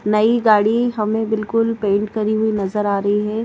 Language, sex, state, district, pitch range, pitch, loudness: Hindi, female, Madhya Pradesh, Bhopal, 210-225 Hz, 215 Hz, -18 LUFS